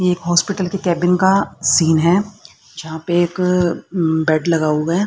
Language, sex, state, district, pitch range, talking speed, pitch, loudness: Hindi, female, Haryana, Rohtak, 160-180 Hz, 180 wpm, 175 Hz, -16 LUFS